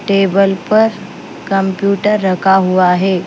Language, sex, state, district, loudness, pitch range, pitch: Hindi, female, Bihar, Patna, -13 LUFS, 190-200 Hz, 195 Hz